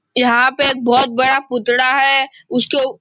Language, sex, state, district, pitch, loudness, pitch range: Hindi, male, Maharashtra, Nagpur, 260 Hz, -12 LUFS, 250-270 Hz